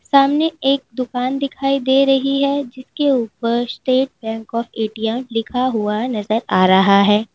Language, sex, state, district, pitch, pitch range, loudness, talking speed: Hindi, female, Uttar Pradesh, Lalitpur, 250 Hz, 225-275 Hz, -18 LUFS, 155 wpm